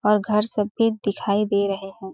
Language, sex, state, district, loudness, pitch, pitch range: Hindi, female, Chhattisgarh, Balrampur, -22 LUFS, 210 Hz, 200-210 Hz